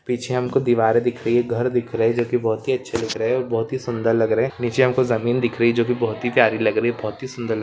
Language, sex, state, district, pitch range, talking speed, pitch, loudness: Hindi, male, Maharashtra, Solapur, 115-125 Hz, 340 wpm, 120 Hz, -21 LUFS